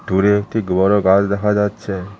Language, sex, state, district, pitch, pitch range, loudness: Bengali, male, West Bengal, Cooch Behar, 100 Hz, 95-105 Hz, -17 LUFS